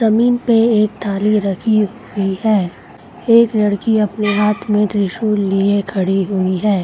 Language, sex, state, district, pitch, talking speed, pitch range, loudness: Hindi, female, Bihar, Gaya, 210 Hz, 150 wpm, 195-220 Hz, -15 LUFS